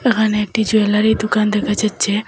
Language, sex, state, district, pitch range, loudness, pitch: Bengali, female, Assam, Hailakandi, 210-220 Hz, -16 LUFS, 215 Hz